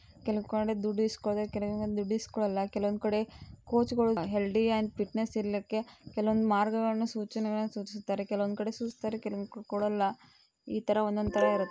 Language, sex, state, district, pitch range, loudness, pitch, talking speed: Kannada, female, Karnataka, Belgaum, 205-220 Hz, -32 LUFS, 215 Hz, 155 wpm